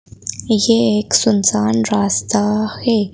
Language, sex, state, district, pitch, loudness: Hindi, female, Madhya Pradesh, Bhopal, 210 Hz, -15 LUFS